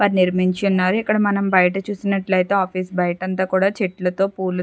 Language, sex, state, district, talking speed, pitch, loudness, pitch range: Telugu, female, Andhra Pradesh, Chittoor, 180 wpm, 190 Hz, -19 LUFS, 185-195 Hz